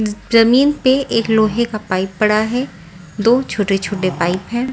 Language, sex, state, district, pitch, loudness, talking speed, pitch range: Hindi, female, Bihar, Patna, 215 Hz, -16 LUFS, 165 wpm, 195-240 Hz